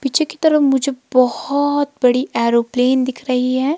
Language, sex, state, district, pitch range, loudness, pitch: Hindi, female, Himachal Pradesh, Shimla, 250-285 Hz, -16 LUFS, 260 Hz